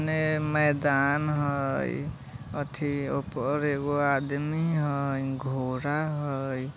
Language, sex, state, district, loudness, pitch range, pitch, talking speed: Bajjika, male, Bihar, Vaishali, -28 LUFS, 135-150 Hz, 145 Hz, 95 wpm